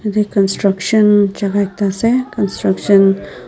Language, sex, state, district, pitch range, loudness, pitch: Nagamese, female, Nagaland, Dimapur, 195-210 Hz, -14 LUFS, 200 Hz